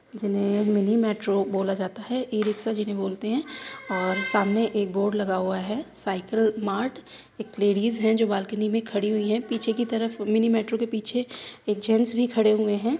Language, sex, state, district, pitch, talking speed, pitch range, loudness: Hindi, female, Uttar Pradesh, Hamirpur, 215 Hz, 200 wpm, 205-225 Hz, -25 LUFS